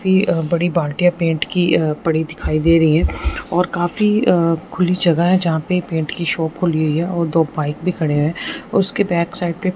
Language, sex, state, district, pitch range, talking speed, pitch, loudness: Hindi, male, Punjab, Fazilka, 160-180 Hz, 210 wpm, 170 Hz, -17 LUFS